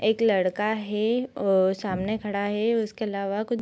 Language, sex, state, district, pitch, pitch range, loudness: Hindi, female, Bihar, Sitamarhi, 210 Hz, 195-220 Hz, -25 LUFS